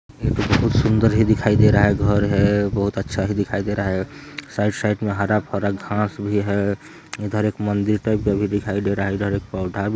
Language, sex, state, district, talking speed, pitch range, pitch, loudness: Hindi, male, Chhattisgarh, Balrampur, 230 wpm, 100-105 Hz, 105 Hz, -20 LUFS